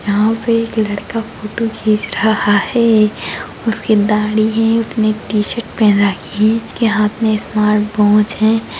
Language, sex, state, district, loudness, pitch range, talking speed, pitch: Hindi, female, Chhattisgarh, Raigarh, -15 LUFS, 210-225 Hz, 165 wpm, 215 Hz